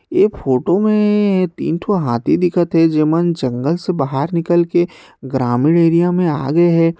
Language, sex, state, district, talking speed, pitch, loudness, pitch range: Chhattisgarhi, male, Chhattisgarh, Sarguja, 170 wpm, 170 Hz, -15 LUFS, 145-180 Hz